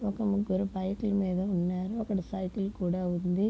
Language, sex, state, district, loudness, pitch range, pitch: Telugu, female, Andhra Pradesh, Guntur, -31 LUFS, 185-205 Hz, 195 Hz